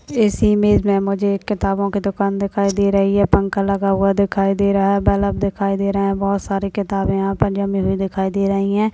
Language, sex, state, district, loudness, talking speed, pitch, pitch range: Hindi, male, Maharashtra, Solapur, -18 LUFS, 220 wpm, 200 Hz, 195-200 Hz